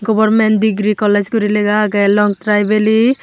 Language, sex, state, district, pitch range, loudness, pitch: Chakma, female, Tripura, Unakoti, 205-220 Hz, -13 LUFS, 215 Hz